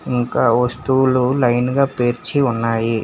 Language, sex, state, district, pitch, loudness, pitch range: Telugu, male, Telangana, Hyderabad, 125 Hz, -17 LUFS, 120-130 Hz